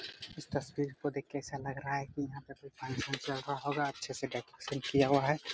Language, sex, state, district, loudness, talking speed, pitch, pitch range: Hindi, female, Jharkhand, Jamtara, -36 LUFS, 250 wpm, 140 Hz, 135-145 Hz